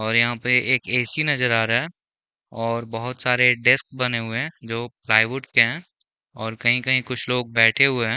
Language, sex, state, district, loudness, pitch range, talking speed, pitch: Hindi, male, Chhattisgarh, Bilaspur, -20 LUFS, 115-125 Hz, 190 wpm, 120 Hz